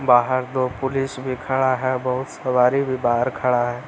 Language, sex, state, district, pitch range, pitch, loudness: Hindi, male, Bihar, Araria, 125-130 Hz, 130 Hz, -21 LUFS